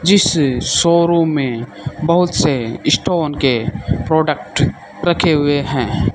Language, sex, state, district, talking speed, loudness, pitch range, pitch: Hindi, male, Rajasthan, Bikaner, 105 wpm, -16 LUFS, 130-170 Hz, 150 Hz